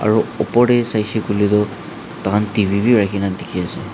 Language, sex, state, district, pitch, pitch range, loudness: Nagamese, male, Nagaland, Dimapur, 105 Hz, 100-110 Hz, -17 LUFS